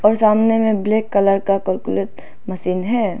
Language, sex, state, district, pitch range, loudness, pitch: Hindi, female, Arunachal Pradesh, Lower Dibang Valley, 195-220 Hz, -17 LUFS, 210 Hz